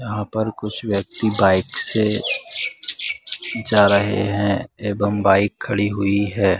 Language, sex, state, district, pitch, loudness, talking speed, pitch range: Hindi, male, Bihar, Saran, 105 Hz, -19 LUFS, 125 wpm, 100-110 Hz